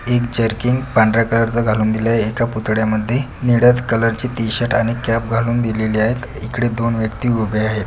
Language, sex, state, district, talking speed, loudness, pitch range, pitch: Marathi, male, Maharashtra, Pune, 175 wpm, -17 LUFS, 110-120 Hz, 115 Hz